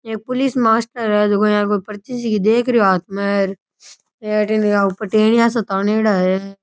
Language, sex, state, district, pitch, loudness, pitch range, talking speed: Rajasthani, male, Rajasthan, Nagaur, 210 Hz, -17 LUFS, 200-225 Hz, 120 wpm